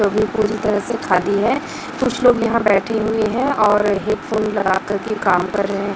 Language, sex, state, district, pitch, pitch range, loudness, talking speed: Hindi, female, Chhattisgarh, Raipur, 210 Hz, 200-220 Hz, -18 LUFS, 190 wpm